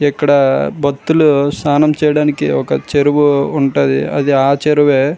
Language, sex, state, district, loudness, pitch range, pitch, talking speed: Telugu, male, Andhra Pradesh, Srikakulam, -13 LUFS, 140-150 Hz, 145 Hz, 115 wpm